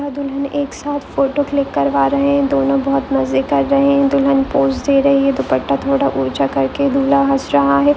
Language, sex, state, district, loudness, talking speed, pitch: Hindi, female, Goa, North and South Goa, -15 LUFS, 225 wpm, 260 Hz